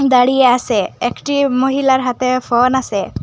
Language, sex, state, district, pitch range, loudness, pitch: Bengali, female, Assam, Hailakandi, 245-265 Hz, -15 LUFS, 255 Hz